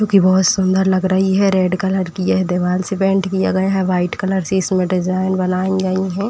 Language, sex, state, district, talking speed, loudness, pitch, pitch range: Hindi, female, Uttar Pradesh, Etah, 230 wpm, -16 LUFS, 190 Hz, 185-190 Hz